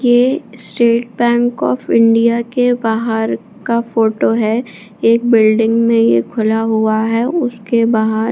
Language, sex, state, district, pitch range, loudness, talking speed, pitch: Hindi, female, Bihar, Jamui, 220-235 Hz, -14 LUFS, 145 wpm, 230 Hz